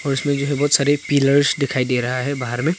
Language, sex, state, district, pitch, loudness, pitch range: Hindi, male, Arunachal Pradesh, Papum Pare, 140 Hz, -18 LUFS, 130-145 Hz